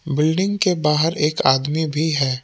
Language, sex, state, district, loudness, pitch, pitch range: Hindi, male, Jharkhand, Palamu, -19 LUFS, 155 Hz, 150-160 Hz